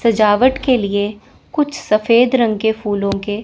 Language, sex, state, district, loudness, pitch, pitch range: Hindi, female, Chandigarh, Chandigarh, -16 LUFS, 220 Hz, 205-250 Hz